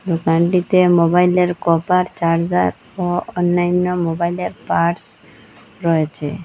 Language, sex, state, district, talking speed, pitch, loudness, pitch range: Bengali, female, Assam, Hailakandi, 85 wpm, 175 Hz, -17 LUFS, 165-180 Hz